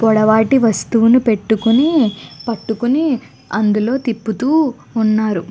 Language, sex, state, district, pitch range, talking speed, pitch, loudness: Telugu, female, Andhra Pradesh, Guntur, 215-250 Hz, 75 wpm, 225 Hz, -15 LUFS